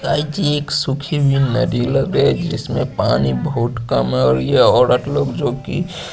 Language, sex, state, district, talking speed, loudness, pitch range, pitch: Hindi, male, Chandigarh, Chandigarh, 175 wpm, -17 LUFS, 120-145 Hz, 135 Hz